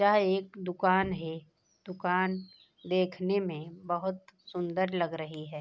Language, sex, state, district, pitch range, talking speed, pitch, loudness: Hindi, female, Bihar, Bhagalpur, 170-190 Hz, 130 wpm, 185 Hz, -31 LUFS